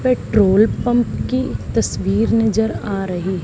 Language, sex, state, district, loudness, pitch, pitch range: Hindi, female, Haryana, Charkhi Dadri, -18 LUFS, 220 Hz, 195-240 Hz